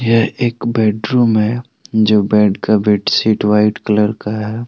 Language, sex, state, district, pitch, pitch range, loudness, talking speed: Hindi, male, Jharkhand, Deoghar, 110 Hz, 105-115 Hz, -14 LUFS, 155 wpm